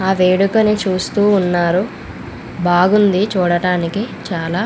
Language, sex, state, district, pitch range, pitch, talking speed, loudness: Telugu, female, Andhra Pradesh, Visakhapatnam, 175-200 Hz, 185 Hz, 90 wpm, -15 LUFS